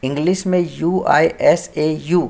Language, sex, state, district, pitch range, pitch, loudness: Hindi, male, Bihar, Bhagalpur, 155-180 Hz, 170 Hz, -17 LUFS